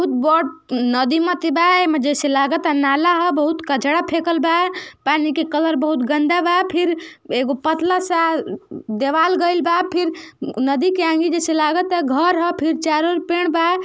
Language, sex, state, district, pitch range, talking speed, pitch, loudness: Bhojpuri, female, Uttar Pradesh, Ghazipur, 300-345 Hz, 160 wpm, 330 Hz, -18 LUFS